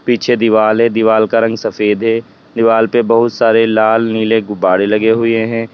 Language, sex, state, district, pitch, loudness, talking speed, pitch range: Hindi, male, Uttar Pradesh, Lalitpur, 115 Hz, -12 LUFS, 190 wpm, 110-115 Hz